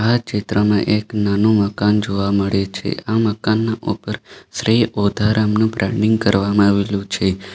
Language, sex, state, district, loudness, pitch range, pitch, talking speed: Gujarati, male, Gujarat, Valsad, -17 LUFS, 100-110 Hz, 105 Hz, 150 wpm